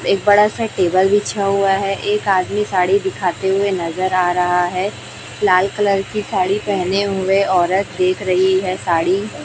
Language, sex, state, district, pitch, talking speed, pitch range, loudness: Hindi, female, Chhattisgarh, Raipur, 195 Hz, 170 wpm, 185-200 Hz, -17 LUFS